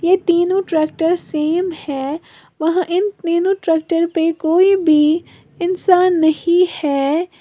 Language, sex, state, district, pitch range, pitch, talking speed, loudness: Hindi, female, Uttar Pradesh, Lalitpur, 315-360 Hz, 335 Hz, 120 wpm, -16 LUFS